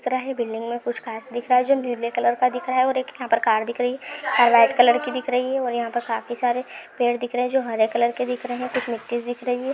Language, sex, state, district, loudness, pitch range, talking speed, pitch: Hindi, female, Rajasthan, Churu, -22 LUFS, 235-255 Hz, 295 wpm, 245 Hz